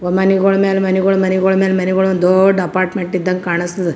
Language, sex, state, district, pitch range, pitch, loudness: Kannada, female, Karnataka, Gulbarga, 185-190 Hz, 190 Hz, -14 LUFS